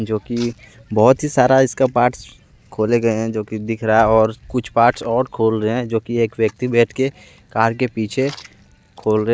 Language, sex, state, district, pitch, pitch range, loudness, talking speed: Hindi, male, Jharkhand, Deoghar, 115 Hz, 110-125 Hz, -18 LUFS, 220 wpm